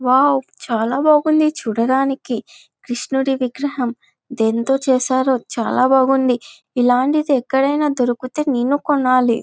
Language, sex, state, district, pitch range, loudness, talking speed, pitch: Telugu, female, Andhra Pradesh, Anantapur, 245-280 Hz, -17 LUFS, 95 wpm, 260 Hz